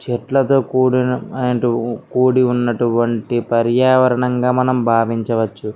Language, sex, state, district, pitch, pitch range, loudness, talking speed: Telugu, male, Andhra Pradesh, Anantapur, 125 Hz, 115-130 Hz, -16 LUFS, 95 wpm